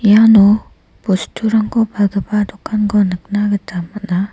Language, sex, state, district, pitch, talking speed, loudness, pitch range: Garo, female, Meghalaya, West Garo Hills, 205 Hz, 95 wpm, -15 LUFS, 200-215 Hz